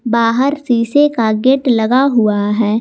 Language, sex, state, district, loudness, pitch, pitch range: Hindi, female, Jharkhand, Garhwa, -13 LUFS, 235 Hz, 220-270 Hz